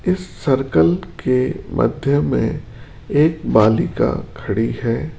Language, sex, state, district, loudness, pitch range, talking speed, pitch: Hindi, male, Rajasthan, Jaipur, -18 LUFS, 115-150 Hz, 105 wpm, 130 Hz